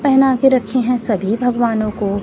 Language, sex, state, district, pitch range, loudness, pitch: Hindi, female, Chhattisgarh, Raipur, 215-260 Hz, -16 LUFS, 245 Hz